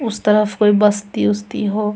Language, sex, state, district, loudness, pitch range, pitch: Hindi, female, Bihar, Samastipur, -16 LUFS, 205-210 Hz, 210 Hz